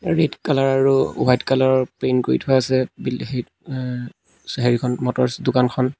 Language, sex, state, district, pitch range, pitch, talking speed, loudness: Assamese, male, Assam, Sonitpur, 125-135 Hz, 130 Hz, 160 wpm, -20 LUFS